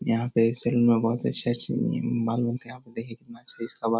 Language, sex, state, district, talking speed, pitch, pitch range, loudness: Hindi, male, Bihar, Jahanabad, 270 wpm, 115 Hz, 115-120 Hz, -25 LUFS